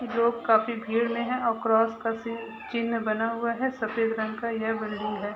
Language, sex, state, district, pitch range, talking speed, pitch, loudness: Hindi, female, Uttar Pradesh, Gorakhpur, 220-235 Hz, 215 wpm, 225 Hz, -27 LUFS